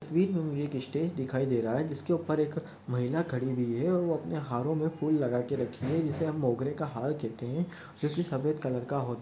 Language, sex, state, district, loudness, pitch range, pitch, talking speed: Hindi, male, Maharashtra, Aurangabad, -31 LUFS, 125-160 Hz, 150 Hz, 260 wpm